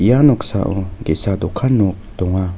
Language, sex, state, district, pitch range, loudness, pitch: Garo, male, Meghalaya, North Garo Hills, 95-115 Hz, -17 LUFS, 100 Hz